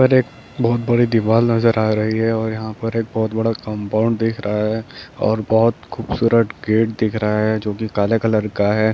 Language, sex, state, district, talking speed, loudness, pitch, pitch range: Hindi, male, Chhattisgarh, Bilaspur, 210 wpm, -18 LUFS, 110 Hz, 110-115 Hz